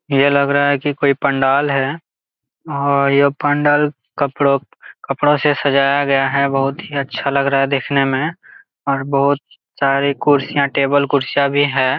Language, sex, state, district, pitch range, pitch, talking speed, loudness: Hindi, male, Jharkhand, Jamtara, 140-145 Hz, 140 Hz, 165 wpm, -16 LUFS